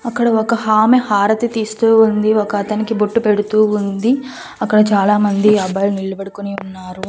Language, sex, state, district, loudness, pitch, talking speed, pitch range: Telugu, female, Andhra Pradesh, Annamaya, -15 LUFS, 210 Hz, 145 wpm, 200-225 Hz